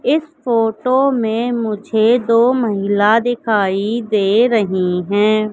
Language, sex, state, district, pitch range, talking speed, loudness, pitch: Hindi, female, Madhya Pradesh, Katni, 205-240 Hz, 110 wpm, -15 LUFS, 225 Hz